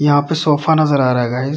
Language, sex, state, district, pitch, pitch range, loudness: Hindi, male, Bihar, Kishanganj, 145 Hz, 130-155 Hz, -15 LUFS